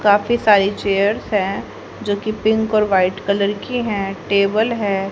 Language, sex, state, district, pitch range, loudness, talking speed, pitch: Hindi, female, Haryana, Rohtak, 195-215 Hz, -18 LUFS, 165 wpm, 205 Hz